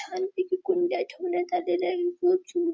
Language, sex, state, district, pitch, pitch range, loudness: Marathi, female, Maharashtra, Dhule, 360 Hz, 350-370 Hz, -27 LUFS